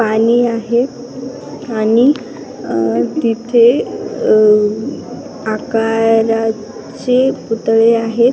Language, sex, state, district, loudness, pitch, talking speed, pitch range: Marathi, female, Maharashtra, Washim, -14 LUFS, 230 Hz, 65 wpm, 225-250 Hz